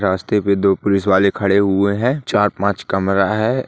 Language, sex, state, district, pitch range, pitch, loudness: Hindi, male, Rajasthan, Nagaur, 95-105 Hz, 100 Hz, -16 LUFS